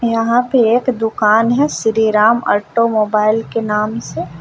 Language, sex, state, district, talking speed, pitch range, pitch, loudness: Hindi, female, Jharkhand, Palamu, 135 wpm, 215-235 Hz, 225 Hz, -15 LUFS